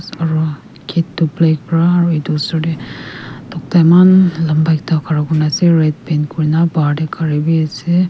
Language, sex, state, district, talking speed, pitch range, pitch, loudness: Nagamese, female, Nagaland, Kohima, 170 wpm, 150-165 Hz, 160 Hz, -14 LUFS